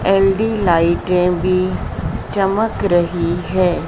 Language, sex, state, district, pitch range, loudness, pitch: Hindi, female, Madhya Pradesh, Dhar, 175-195 Hz, -17 LUFS, 185 Hz